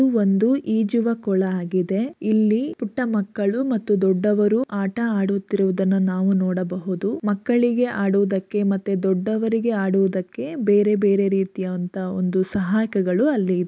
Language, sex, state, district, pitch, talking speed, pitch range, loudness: Kannada, female, Karnataka, Shimoga, 200 Hz, 125 wpm, 190-225 Hz, -21 LUFS